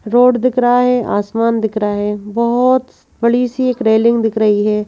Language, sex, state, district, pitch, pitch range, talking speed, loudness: Hindi, female, Madhya Pradesh, Bhopal, 230 Hz, 215-250 Hz, 195 wpm, -14 LUFS